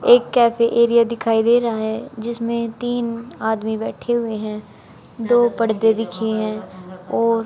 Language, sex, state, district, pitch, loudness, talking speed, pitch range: Hindi, female, Haryana, Charkhi Dadri, 230 Hz, -19 LUFS, 145 wpm, 220-235 Hz